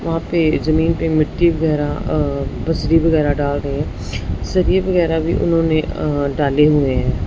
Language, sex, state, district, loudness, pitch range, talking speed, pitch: Hindi, male, Punjab, Fazilka, -17 LUFS, 140-165 Hz, 155 wpm, 155 Hz